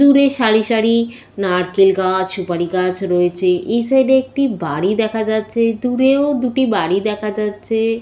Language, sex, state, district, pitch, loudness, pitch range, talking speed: Bengali, female, West Bengal, Jalpaiguri, 220 Hz, -16 LUFS, 190-250 Hz, 150 wpm